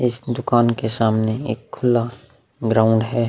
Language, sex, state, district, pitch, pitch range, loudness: Hindi, male, Uttar Pradesh, Muzaffarnagar, 115 Hz, 110-120 Hz, -20 LUFS